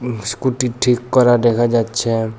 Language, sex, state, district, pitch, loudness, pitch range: Bengali, male, Tripura, West Tripura, 120 Hz, -16 LUFS, 115-125 Hz